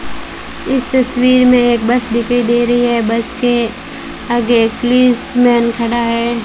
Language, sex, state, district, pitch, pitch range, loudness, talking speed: Hindi, female, Rajasthan, Bikaner, 240 Hz, 235-250 Hz, -13 LUFS, 150 wpm